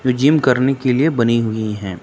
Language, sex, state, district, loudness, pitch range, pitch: Hindi, male, Uttar Pradesh, Lucknow, -16 LUFS, 110-135 Hz, 125 Hz